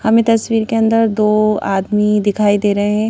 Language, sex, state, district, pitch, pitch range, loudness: Hindi, female, Madhya Pradesh, Bhopal, 215 Hz, 205-225 Hz, -14 LUFS